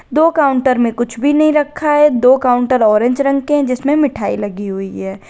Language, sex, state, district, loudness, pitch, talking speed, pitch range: Hindi, female, Uttar Pradesh, Lalitpur, -14 LUFS, 255 Hz, 205 wpm, 235-295 Hz